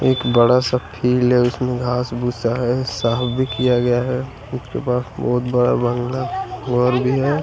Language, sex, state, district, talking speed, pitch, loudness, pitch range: Bhojpuri, male, Bihar, East Champaran, 160 wpm, 125 Hz, -19 LUFS, 120-125 Hz